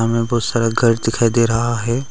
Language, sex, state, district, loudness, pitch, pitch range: Hindi, male, Arunachal Pradesh, Longding, -17 LUFS, 115 Hz, 115-120 Hz